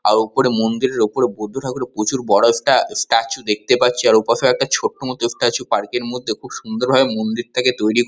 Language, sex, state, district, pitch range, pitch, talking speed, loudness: Bengali, male, West Bengal, North 24 Parganas, 110-125 Hz, 115 Hz, 210 wpm, -18 LUFS